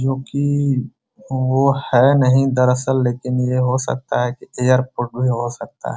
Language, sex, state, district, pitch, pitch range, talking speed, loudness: Hindi, male, Bihar, Muzaffarpur, 130 Hz, 125-135 Hz, 170 wpm, -18 LUFS